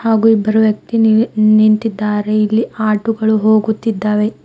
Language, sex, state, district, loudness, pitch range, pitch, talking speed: Kannada, female, Karnataka, Bidar, -14 LUFS, 215-225 Hz, 215 Hz, 120 wpm